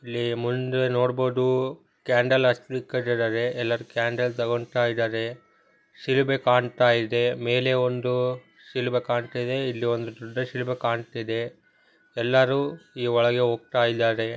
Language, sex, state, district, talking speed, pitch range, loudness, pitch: Kannada, male, Karnataka, Bellary, 100 wpm, 120-125 Hz, -25 LUFS, 120 Hz